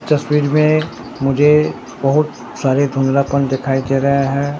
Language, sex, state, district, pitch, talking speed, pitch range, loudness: Hindi, male, Bihar, Katihar, 140 Hz, 130 wpm, 135-150 Hz, -16 LUFS